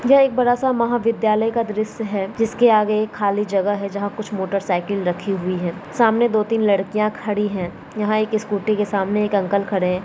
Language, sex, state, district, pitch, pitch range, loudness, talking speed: Hindi, female, Maharashtra, Sindhudurg, 210 Hz, 195-220 Hz, -20 LUFS, 210 wpm